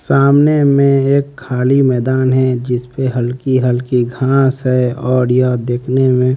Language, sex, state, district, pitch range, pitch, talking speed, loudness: Hindi, male, Haryana, Rohtak, 125-135 Hz, 130 Hz, 140 wpm, -14 LUFS